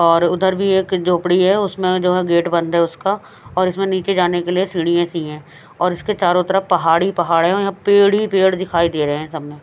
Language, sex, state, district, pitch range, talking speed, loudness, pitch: Hindi, female, Himachal Pradesh, Shimla, 170-190 Hz, 250 wpm, -17 LUFS, 180 Hz